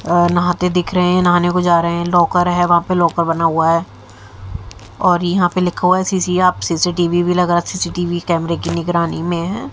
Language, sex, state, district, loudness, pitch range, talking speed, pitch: Hindi, female, Haryana, Jhajjar, -15 LUFS, 170-180 Hz, 215 wpm, 175 Hz